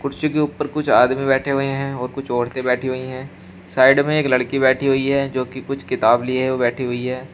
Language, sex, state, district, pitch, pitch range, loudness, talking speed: Hindi, male, Uttar Pradesh, Shamli, 130 Hz, 125-140 Hz, -19 LUFS, 245 wpm